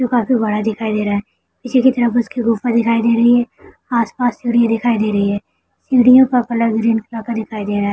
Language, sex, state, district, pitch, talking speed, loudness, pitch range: Hindi, female, Bihar, Araria, 230 Hz, 240 wpm, -16 LUFS, 220-240 Hz